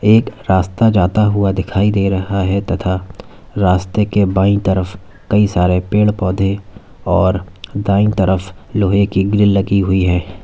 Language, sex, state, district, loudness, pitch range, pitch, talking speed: Hindi, male, Uttar Pradesh, Lalitpur, -15 LUFS, 95-100 Hz, 100 Hz, 150 wpm